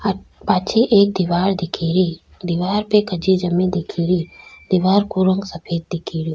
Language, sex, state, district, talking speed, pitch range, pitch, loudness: Rajasthani, female, Rajasthan, Nagaur, 160 wpm, 175-200 Hz, 185 Hz, -19 LUFS